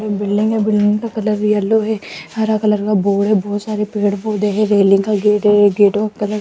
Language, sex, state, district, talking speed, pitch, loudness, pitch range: Hindi, female, Rajasthan, Jaipur, 255 wpm, 210 Hz, -15 LUFS, 205-215 Hz